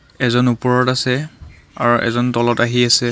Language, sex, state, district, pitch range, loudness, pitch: Assamese, male, Assam, Kamrup Metropolitan, 120-125 Hz, -16 LUFS, 120 Hz